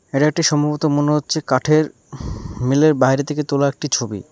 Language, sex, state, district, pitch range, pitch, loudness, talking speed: Bengali, male, West Bengal, Alipurduar, 130-150 Hz, 145 Hz, -18 LUFS, 180 wpm